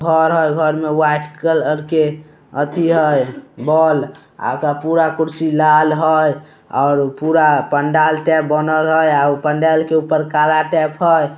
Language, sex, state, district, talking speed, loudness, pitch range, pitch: Hindi, male, Bihar, Samastipur, 155 wpm, -15 LUFS, 150-160 Hz, 155 Hz